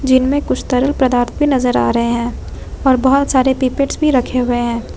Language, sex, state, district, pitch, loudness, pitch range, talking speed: Hindi, female, Jharkhand, Ranchi, 260 Hz, -15 LUFS, 245-275 Hz, 205 wpm